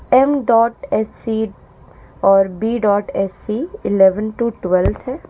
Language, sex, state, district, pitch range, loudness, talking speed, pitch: Hindi, male, Uttar Pradesh, Lalitpur, 195-250 Hz, -17 LUFS, 125 wpm, 220 Hz